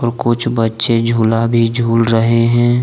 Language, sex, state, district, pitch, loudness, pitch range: Hindi, male, Jharkhand, Deoghar, 115 Hz, -14 LUFS, 115-120 Hz